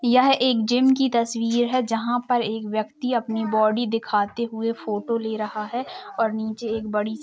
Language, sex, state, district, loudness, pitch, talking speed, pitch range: Hindi, female, Jharkhand, Sahebganj, -23 LUFS, 230 Hz, 190 wpm, 220-245 Hz